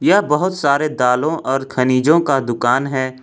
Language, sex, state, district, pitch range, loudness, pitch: Hindi, male, Jharkhand, Ranchi, 130-155 Hz, -16 LUFS, 135 Hz